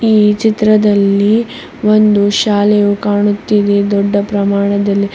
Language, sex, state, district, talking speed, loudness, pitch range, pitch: Kannada, female, Karnataka, Bidar, 95 wpm, -12 LUFS, 200-210 Hz, 205 Hz